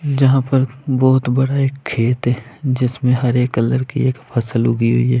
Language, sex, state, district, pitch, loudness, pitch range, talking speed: Hindi, male, Punjab, Fazilka, 130 Hz, -17 LUFS, 125-135 Hz, 185 wpm